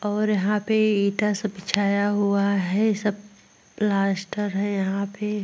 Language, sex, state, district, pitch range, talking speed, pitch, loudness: Hindi, female, Uttar Pradesh, Muzaffarnagar, 200-210 Hz, 155 wpm, 205 Hz, -23 LUFS